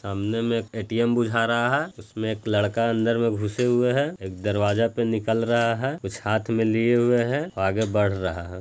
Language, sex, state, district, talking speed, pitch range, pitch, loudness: Hindi, male, Bihar, Jahanabad, 225 wpm, 105-120 Hz, 115 Hz, -24 LUFS